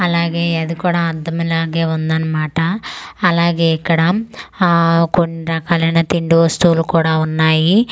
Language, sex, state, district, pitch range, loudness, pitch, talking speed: Telugu, female, Andhra Pradesh, Manyam, 165-170 Hz, -15 LUFS, 165 Hz, 130 wpm